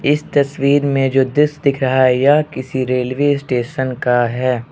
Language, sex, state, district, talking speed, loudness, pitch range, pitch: Hindi, male, Arunachal Pradesh, Lower Dibang Valley, 180 wpm, -16 LUFS, 130-145 Hz, 135 Hz